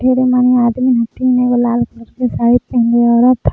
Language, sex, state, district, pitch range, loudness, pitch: Magahi, female, Jharkhand, Palamu, 235-250 Hz, -13 LUFS, 245 Hz